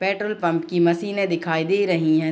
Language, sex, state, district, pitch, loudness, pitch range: Hindi, female, Bihar, Gopalganj, 175 Hz, -21 LUFS, 165-195 Hz